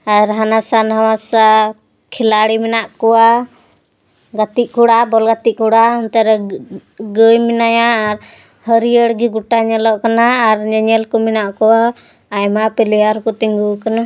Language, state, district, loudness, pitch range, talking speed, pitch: Santali, Jharkhand, Sahebganj, -13 LUFS, 220-230 Hz, 130 wpm, 225 Hz